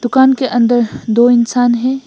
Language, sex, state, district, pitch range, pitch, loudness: Hindi, female, Assam, Hailakandi, 240-260 Hz, 245 Hz, -12 LUFS